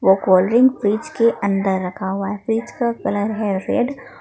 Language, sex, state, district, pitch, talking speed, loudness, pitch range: Hindi, female, Jharkhand, Palamu, 215 Hz, 200 wpm, -19 LUFS, 195-240 Hz